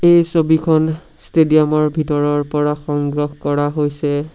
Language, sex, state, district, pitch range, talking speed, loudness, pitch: Assamese, male, Assam, Sonitpur, 145-160 Hz, 125 wpm, -16 LUFS, 150 Hz